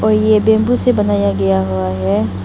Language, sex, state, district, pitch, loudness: Hindi, female, Arunachal Pradesh, Papum Pare, 105 Hz, -14 LUFS